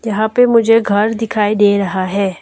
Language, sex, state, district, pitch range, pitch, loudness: Hindi, female, Arunachal Pradesh, Lower Dibang Valley, 200-225 Hz, 210 Hz, -13 LUFS